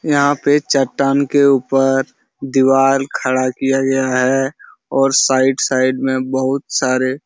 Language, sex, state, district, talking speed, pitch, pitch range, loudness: Hindi, male, Uttar Pradesh, Hamirpur, 140 wpm, 135 Hz, 130-135 Hz, -15 LUFS